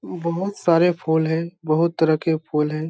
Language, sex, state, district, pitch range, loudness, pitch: Hindi, male, Jharkhand, Sahebganj, 155-170 Hz, -21 LUFS, 160 Hz